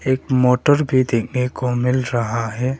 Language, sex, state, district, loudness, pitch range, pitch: Hindi, male, Arunachal Pradesh, Longding, -18 LUFS, 120-130 Hz, 125 Hz